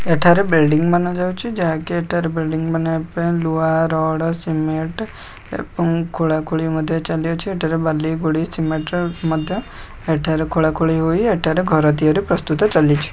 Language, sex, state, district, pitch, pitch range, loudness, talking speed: Odia, male, Odisha, Khordha, 160 Hz, 160-170 Hz, -18 LUFS, 140 wpm